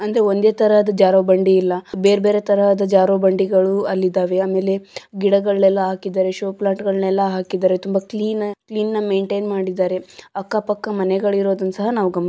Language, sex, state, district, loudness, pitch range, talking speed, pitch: Kannada, female, Karnataka, Gulbarga, -18 LUFS, 190-205 Hz, 155 wpm, 195 Hz